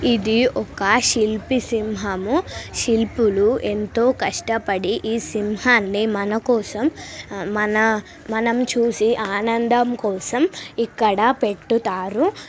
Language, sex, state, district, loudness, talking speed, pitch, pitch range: Telugu, female, Telangana, Karimnagar, -20 LUFS, 80 wpm, 225 Hz, 210-245 Hz